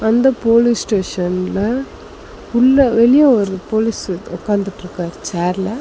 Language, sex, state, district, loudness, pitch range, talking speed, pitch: Tamil, female, Tamil Nadu, Chennai, -16 LUFS, 185-235 Hz, 115 wpm, 215 Hz